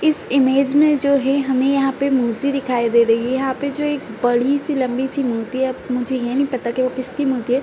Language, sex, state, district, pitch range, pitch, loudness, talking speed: Hindi, female, Uttar Pradesh, Ghazipur, 250-280 Hz, 265 Hz, -19 LUFS, 235 wpm